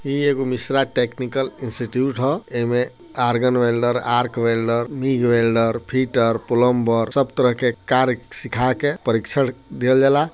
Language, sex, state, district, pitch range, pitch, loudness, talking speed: Bhojpuri, male, Bihar, Gopalganj, 120-135 Hz, 125 Hz, -20 LUFS, 140 wpm